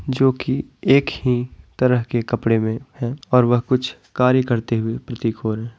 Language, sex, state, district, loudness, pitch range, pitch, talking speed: Hindi, male, Bihar, Bhagalpur, -20 LUFS, 115-130 Hz, 120 Hz, 175 wpm